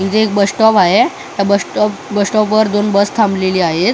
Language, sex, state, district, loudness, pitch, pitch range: Marathi, male, Maharashtra, Mumbai Suburban, -13 LUFS, 205 Hz, 200-220 Hz